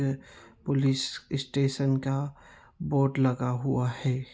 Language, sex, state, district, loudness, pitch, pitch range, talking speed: Hindi, male, Chhattisgarh, Sukma, -28 LUFS, 135 Hz, 130-140 Hz, 95 wpm